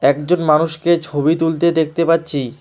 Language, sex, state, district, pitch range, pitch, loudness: Bengali, male, West Bengal, Alipurduar, 150-165 Hz, 160 Hz, -16 LUFS